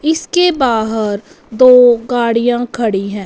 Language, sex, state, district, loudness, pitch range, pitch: Hindi, female, Punjab, Fazilka, -12 LUFS, 220-260 Hz, 240 Hz